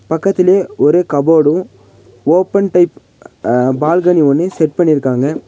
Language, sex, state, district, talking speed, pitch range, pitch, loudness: Tamil, male, Tamil Nadu, Nilgiris, 110 wpm, 140-180 Hz, 160 Hz, -13 LUFS